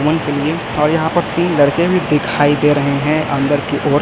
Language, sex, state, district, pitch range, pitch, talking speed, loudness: Hindi, male, Chhattisgarh, Raipur, 145-160 Hz, 150 Hz, 195 wpm, -15 LUFS